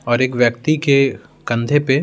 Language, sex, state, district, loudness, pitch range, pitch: Hindi, male, Bihar, Patna, -17 LUFS, 120-140 Hz, 130 Hz